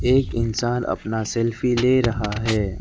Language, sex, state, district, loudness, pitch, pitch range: Hindi, male, Arunachal Pradesh, Lower Dibang Valley, -22 LUFS, 115 Hz, 110-125 Hz